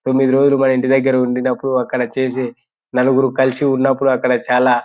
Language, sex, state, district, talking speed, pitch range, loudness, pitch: Telugu, male, Telangana, Nalgonda, 160 wpm, 125-135 Hz, -16 LUFS, 130 Hz